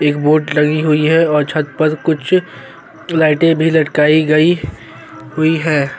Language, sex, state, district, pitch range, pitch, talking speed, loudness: Hindi, male, Chhattisgarh, Sukma, 150-160 Hz, 155 Hz, 160 wpm, -13 LUFS